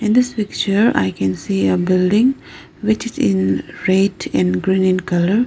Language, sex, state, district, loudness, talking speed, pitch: English, female, Arunachal Pradesh, Lower Dibang Valley, -17 LUFS, 165 wpm, 185 Hz